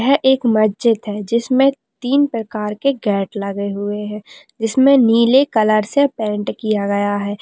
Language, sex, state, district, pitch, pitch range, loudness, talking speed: Hindi, female, Bihar, Lakhisarai, 220 Hz, 205-260 Hz, -17 LUFS, 160 wpm